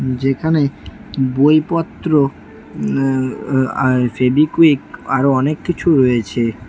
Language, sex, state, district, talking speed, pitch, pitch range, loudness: Bengali, female, West Bengal, Alipurduar, 90 wpm, 135 Hz, 130-150 Hz, -16 LUFS